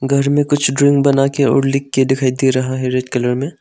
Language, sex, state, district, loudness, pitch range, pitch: Hindi, male, Arunachal Pradesh, Longding, -15 LUFS, 130-140 Hz, 135 Hz